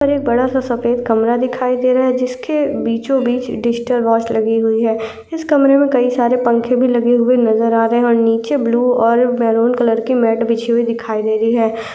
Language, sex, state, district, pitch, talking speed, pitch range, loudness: Hindi, female, Uttar Pradesh, Etah, 235 Hz, 225 wpm, 230-250 Hz, -15 LUFS